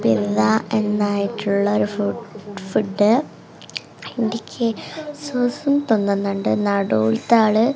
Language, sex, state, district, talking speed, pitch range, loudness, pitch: Malayalam, female, Kerala, Kasaragod, 75 wpm, 200-235 Hz, -20 LUFS, 210 Hz